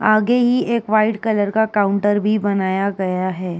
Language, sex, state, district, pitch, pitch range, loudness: Hindi, female, Uttar Pradesh, Jyotiba Phule Nagar, 205 Hz, 195-220 Hz, -18 LUFS